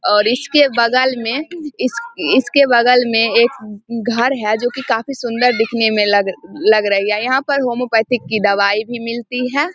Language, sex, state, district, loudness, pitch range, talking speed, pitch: Hindi, female, Bihar, Samastipur, -15 LUFS, 220-260 Hz, 180 wpm, 240 Hz